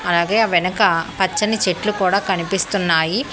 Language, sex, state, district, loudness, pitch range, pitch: Telugu, female, Telangana, Hyderabad, -18 LUFS, 175-210 Hz, 190 Hz